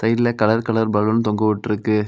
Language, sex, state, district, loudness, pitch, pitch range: Tamil, male, Tamil Nadu, Kanyakumari, -19 LUFS, 110 Hz, 105-115 Hz